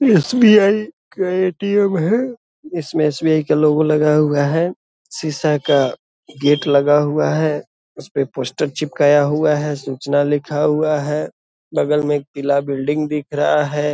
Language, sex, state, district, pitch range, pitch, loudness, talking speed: Hindi, male, Bihar, Purnia, 145-160 Hz, 150 Hz, -17 LUFS, 150 wpm